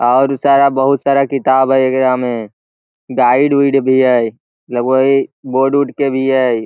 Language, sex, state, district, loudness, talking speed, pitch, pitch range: Magahi, male, Bihar, Lakhisarai, -13 LUFS, 170 wpm, 130 Hz, 125-135 Hz